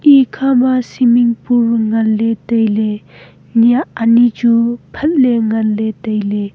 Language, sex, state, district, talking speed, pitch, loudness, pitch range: Wancho, female, Arunachal Pradesh, Longding, 100 wpm, 230 Hz, -13 LUFS, 220-245 Hz